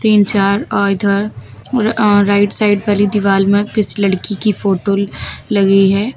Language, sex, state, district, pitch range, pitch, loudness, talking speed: Hindi, female, Uttar Pradesh, Lucknow, 200-210 Hz, 205 Hz, -13 LUFS, 155 wpm